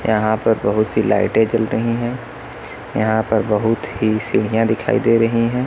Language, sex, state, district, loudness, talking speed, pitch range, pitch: Hindi, male, Uttar Pradesh, Lucknow, -18 LUFS, 180 wpm, 110-115 Hz, 110 Hz